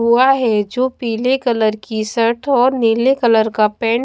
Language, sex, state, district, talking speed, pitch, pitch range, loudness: Hindi, female, Bihar, Katihar, 195 wpm, 235 Hz, 220-255 Hz, -15 LUFS